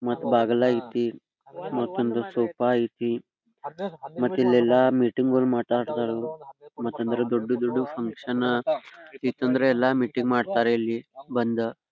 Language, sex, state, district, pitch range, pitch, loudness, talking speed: Kannada, male, Karnataka, Belgaum, 120-130 Hz, 120 Hz, -25 LUFS, 95 wpm